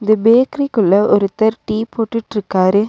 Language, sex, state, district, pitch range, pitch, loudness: Tamil, female, Tamil Nadu, Nilgiris, 205-230 Hz, 220 Hz, -15 LUFS